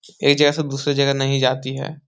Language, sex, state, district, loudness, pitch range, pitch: Hindi, male, Bihar, Supaul, -19 LUFS, 135-145 Hz, 140 Hz